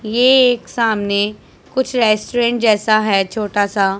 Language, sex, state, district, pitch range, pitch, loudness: Hindi, female, Punjab, Pathankot, 205-240 Hz, 215 Hz, -15 LUFS